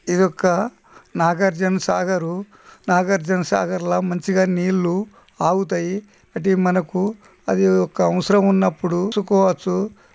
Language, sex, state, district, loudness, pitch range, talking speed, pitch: Telugu, male, Telangana, Nalgonda, -20 LUFS, 180-195 Hz, 75 wpm, 185 Hz